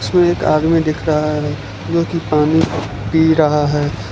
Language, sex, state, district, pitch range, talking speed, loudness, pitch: Hindi, male, Gujarat, Valsad, 150-160 Hz, 175 wpm, -16 LUFS, 155 Hz